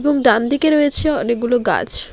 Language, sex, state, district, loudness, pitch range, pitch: Bengali, female, West Bengal, Alipurduar, -16 LUFS, 225-290 Hz, 245 Hz